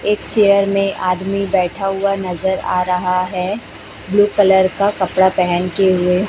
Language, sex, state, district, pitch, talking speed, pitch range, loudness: Hindi, female, Chhattisgarh, Raipur, 190 Hz, 160 wpm, 180-200 Hz, -16 LUFS